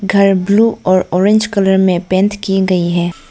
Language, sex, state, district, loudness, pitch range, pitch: Hindi, female, Arunachal Pradesh, Lower Dibang Valley, -13 LUFS, 185-200 Hz, 190 Hz